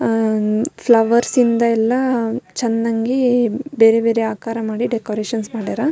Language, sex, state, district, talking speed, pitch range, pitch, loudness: Kannada, female, Karnataka, Belgaum, 110 wpm, 225-240 Hz, 230 Hz, -17 LUFS